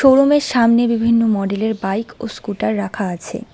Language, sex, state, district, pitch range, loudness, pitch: Bengali, female, West Bengal, Alipurduar, 205-235 Hz, -17 LUFS, 225 Hz